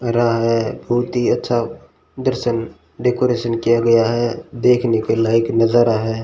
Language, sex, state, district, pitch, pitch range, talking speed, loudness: Hindi, male, Rajasthan, Bikaner, 115 Hz, 115-120 Hz, 145 wpm, -17 LUFS